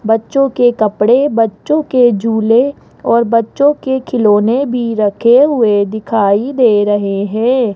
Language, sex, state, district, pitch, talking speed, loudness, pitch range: Hindi, female, Rajasthan, Jaipur, 230 Hz, 130 wpm, -12 LUFS, 215-255 Hz